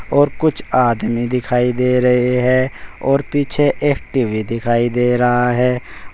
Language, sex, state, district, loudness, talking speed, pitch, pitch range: Hindi, male, Uttar Pradesh, Saharanpur, -16 LUFS, 145 wpm, 125 Hz, 120-135 Hz